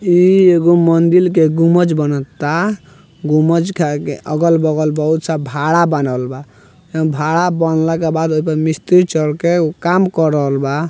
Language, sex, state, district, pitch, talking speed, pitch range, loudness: Bhojpuri, male, Bihar, Gopalganj, 160 Hz, 165 wpm, 150-170 Hz, -14 LUFS